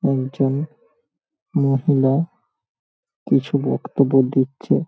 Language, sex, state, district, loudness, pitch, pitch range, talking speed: Bengali, male, West Bengal, Paschim Medinipur, -20 LUFS, 140 Hz, 135-170 Hz, 75 wpm